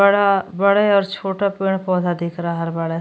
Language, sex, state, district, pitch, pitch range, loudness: Bhojpuri, female, Uttar Pradesh, Ghazipur, 195 Hz, 175-200 Hz, -19 LUFS